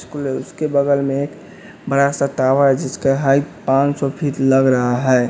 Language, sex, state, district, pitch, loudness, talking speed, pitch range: Hindi, male, Bihar, West Champaran, 135 Hz, -17 LUFS, 205 wpm, 135-140 Hz